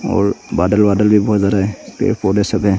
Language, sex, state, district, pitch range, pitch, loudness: Hindi, male, Arunachal Pradesh, Longding, 100-105 Hz, 105 Hz, -15 LUFS